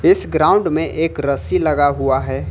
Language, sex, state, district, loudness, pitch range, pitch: Hindi, male, Jharkhand, Ranchi, -17 LUFS, 135-165 Hz, 145 Hz